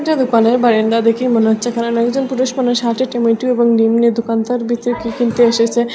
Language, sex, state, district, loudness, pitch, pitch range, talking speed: Bengali, female, Assam, Hailakandi, -14 LUFS, 235 Hz, 230-245 Hz, 140 wpm